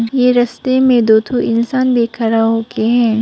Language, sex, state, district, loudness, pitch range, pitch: Hindi, female, Arunachal Pradesh, Papum Pare, -13 LUFS, 225-250 Hz, 235 Hz